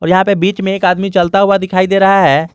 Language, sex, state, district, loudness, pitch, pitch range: Hindi, male, Jharkhand, Garhwa, -11 LUFS, 190 Hz, 180-195 Hz